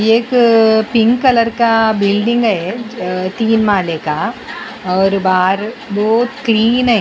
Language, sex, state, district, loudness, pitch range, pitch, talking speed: Hindi, female, Maharashtra, Mumbai Suburban, -14 LUFS, 195-235 Hz, 225 Hz, 135 wpm